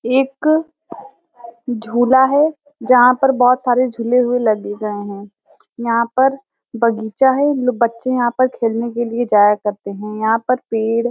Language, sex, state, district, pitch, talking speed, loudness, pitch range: Hindi, female, Uttar Pradesh, Varanasi, 240 Hz, 155 wpm, -16 LUFS, 225-260 Hz